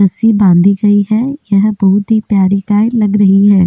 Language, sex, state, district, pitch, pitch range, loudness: Hindi, female, Delhi, New Delhi, 205 Hz, 195-215 Hz, -10 LUFS